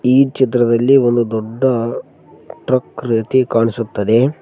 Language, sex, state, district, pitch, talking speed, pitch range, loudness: Kannada, male, Karnataka, Koppal, 120 Hz, 95 wpm, 115-130 Hz, -15 LUFS